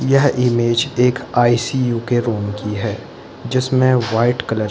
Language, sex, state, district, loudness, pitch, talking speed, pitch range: Hindi, male, Chhattisgarh, Bilaspur, -17 LUFS, 120 Hz, 180 wpm, 115-130 Hz